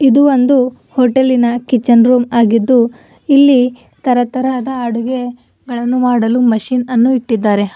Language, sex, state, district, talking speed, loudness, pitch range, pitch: Kannada, female, Karnataka, Bidar, 110 wpm, -12 LUFS, 235-255 Hz, 250 Hz